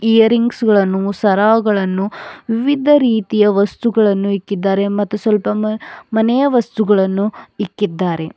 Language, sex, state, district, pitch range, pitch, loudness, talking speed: Kannada, female, Karnataka, Bidar, 200-225 Hz, 210 Hz, -15 LUFS, 85 wpm